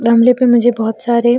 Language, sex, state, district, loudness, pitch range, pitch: Hindi, female, Bihar, Jamui, -12 LUFS, 235-240 Hz, 235 Hz